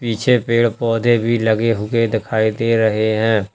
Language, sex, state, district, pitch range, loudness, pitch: Hindi, male, Uttar Pradesh, Lalitpur, 110-115 Hz, -17 LUFS, 115 Hz